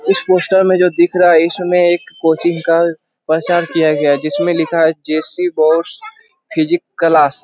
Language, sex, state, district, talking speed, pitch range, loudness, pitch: Hindi, male, Bihar, Jamui, 185 wpm, 160-185 Hz, -14 LUFS, 175 Hz